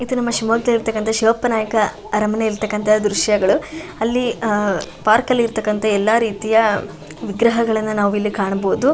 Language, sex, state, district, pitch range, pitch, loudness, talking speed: Kannada, female, Karnataka, Shimoga, 210-230 Hz, 220 Hz, -18 LUFS, 125 wpm